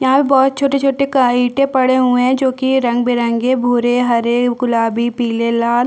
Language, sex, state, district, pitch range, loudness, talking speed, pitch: Hindi, female, Chhattisgarh, Bastar, 240-265 Hz, -14 LUFS, 175 wpm, 245 Hz